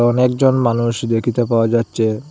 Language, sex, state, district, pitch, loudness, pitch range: Bengali, male, Assam, Hailakandi, 120 Hz, -16 LUFS, 115-125 Hz